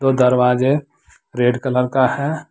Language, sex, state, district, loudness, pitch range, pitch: Hindi, male, Jharkhand, Deoghar, -17 LUFS, 125-140 Hz, 130 Hz